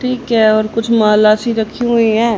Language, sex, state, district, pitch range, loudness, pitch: Hindi, female, Haryana, Charkhi Dadri, 215-235 Hz, -13 LUFS, 225 Hz